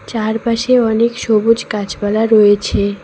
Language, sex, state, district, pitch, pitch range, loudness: Bengali, female, West Bengal, Cooch Behar, 220 Hz, 205-230 Hz, -14 LUFS